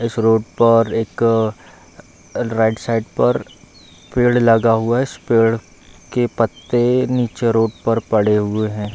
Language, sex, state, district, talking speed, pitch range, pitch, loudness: Hindi, male, Bihar, Darbhanga, 155 wpm, 110-120 Hz, 115 Hz, -17 LUFS